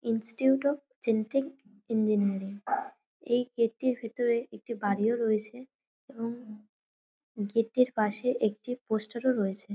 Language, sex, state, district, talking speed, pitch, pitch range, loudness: Bengali, female, West Bengal, North 24 Parganas, 135 wpm, 230 Hz, 215-255 Hz, -30 LUFS